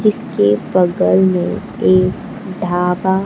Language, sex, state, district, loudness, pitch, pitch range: Hindi, female, Bihar, Kaimur, -15 LUFS, 185 Hz, 180-195 Hz